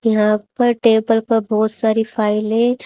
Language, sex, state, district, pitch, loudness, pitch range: Hindi, female, Haryana, Rohtak, 225 Hz, -17 LUFS, 215-230 Hz